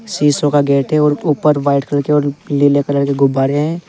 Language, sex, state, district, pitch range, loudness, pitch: Hindi, male, Uttar Pradesh, Saharanpur, 140-150 Hz, -14 LUFS, 145 Hz